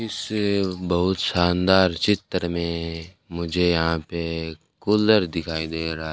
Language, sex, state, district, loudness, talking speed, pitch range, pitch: Hindi, male, Rajasthan, Bikaner, -23 LUFS, 115 wpm, 80-95 Hz, 85 Hz